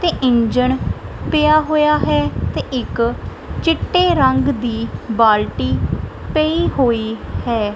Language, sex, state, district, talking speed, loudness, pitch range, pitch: Punjabi, female, Punjab, Kapurthala, 110 wpm, -17 LUFS, 230-305 Hz, 255 Hz